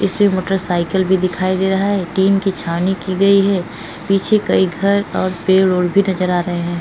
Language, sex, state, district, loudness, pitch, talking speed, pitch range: Hindi, female, Uttar Pradesh, Etah, -16 LUFS, 190 Hz, 220 wpm, 180-195 Hz